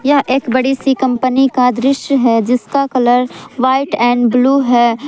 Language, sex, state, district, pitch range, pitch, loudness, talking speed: Hindi, female, Jharkhand, Palamu, 245-270 Hz, 255 Hz, -13 LUFS, 165 wpm